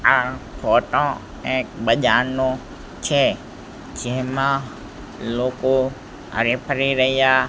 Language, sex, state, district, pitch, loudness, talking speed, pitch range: Gujarati, male, Gujarat, Gandhinagar, 130 Hz, -21 LUFS, 80 wpm, 125-130 Hz